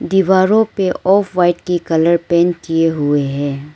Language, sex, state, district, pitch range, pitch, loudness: Hindi, female, Arunachal Pradesh, Lower Dibang Valley, 160-190 Hz, 175 Hz, -15 LUFS